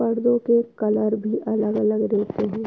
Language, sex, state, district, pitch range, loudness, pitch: Hindi, female, Uttar Pradesh, Etah, 215-230 Hz, -22 LUFS, 215 Hz